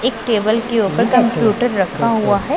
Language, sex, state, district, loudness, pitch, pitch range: Hindi, female, Punjab, Pathankot, -16 LUFS, 230 Hz, 215-240 Hz